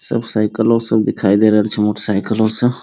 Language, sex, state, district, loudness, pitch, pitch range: Maithili, male, Bihar, Muzaffarpur, -15 LUFS, 110 Hz, 105-115 Hz